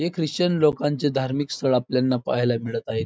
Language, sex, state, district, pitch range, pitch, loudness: Marathi, female, Maharashtra, Dhule, 125-150 Hz, 135 Hz, -23 LUFS